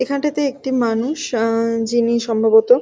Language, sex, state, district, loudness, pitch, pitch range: Bengali, female, West Bengal, Jhargram, -18 LUFS, 235 Hz, 230-275 Hz